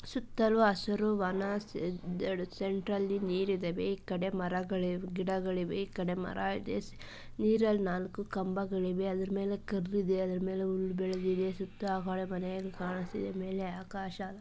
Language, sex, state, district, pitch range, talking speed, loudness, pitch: Kannada, female, Karnataka, Mysore, 185-195 Hz, 85 wpm, -34 LUFS, 190 Hz